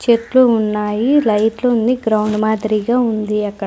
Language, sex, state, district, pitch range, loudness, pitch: Telugu, female, Andhra Pradesh, Sri Satya Sai, 210-240 Hz, -15 LUFS, 220 Hz